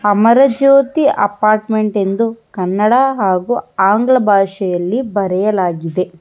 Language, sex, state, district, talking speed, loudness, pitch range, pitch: Kannada, female, Karnataka, Bangalore, 85 wpm, -14 LUFS, 190-240 Hz, 210 Hz